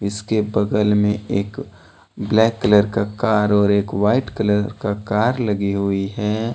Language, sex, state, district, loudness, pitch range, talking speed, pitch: Hindi, male, Jharkhand, Deoghar, -19 LUFS, 100-110 Hz, 155 wpm, 105 Hz